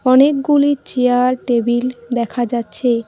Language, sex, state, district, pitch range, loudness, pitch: Bengali, female, West Bengal, Cooch Behar, 240-260 Hz, -16 LUFS, 250 Hz